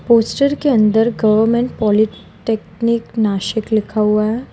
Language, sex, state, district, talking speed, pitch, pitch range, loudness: Hindi, female, Gujarat, Valsad, 120 wpm, 220 Hz, 215-235 Hz, -16 LUFS